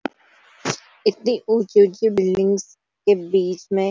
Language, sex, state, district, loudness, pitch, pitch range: Hindi, female, Uttarakhand, Uttarkashi, -20 LUFS, 200 Hz, 190-220 Hz